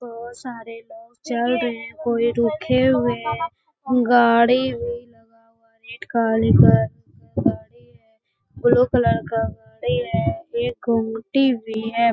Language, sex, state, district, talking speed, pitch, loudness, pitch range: Hindi, female, Bihar, Jamui, 155 wpm, 235 Hz, -20 LUFS, 225-245 Hz